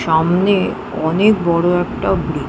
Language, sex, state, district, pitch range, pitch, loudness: Bengali, female, West Bengal, Jhargram, 160-190 Hz, 175 Hz, -16 LUFS